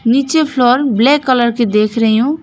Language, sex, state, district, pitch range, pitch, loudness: Hindi, female, West Bengal, Alipurduar, 230-275 Hz, 250 Hz, -12 LUFS